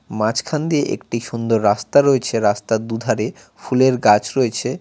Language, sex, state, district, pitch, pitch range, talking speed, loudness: Bengali, male, West Bengal, Cooch Behar, 115 Hz, 110-130 Hz, 135 wpm, -18 LUFS